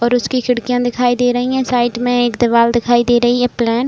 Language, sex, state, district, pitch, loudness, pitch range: Hindi, female, Uttar Pradesh, Budaun, 245 Hz, -14 LUFS, 240-245 Hz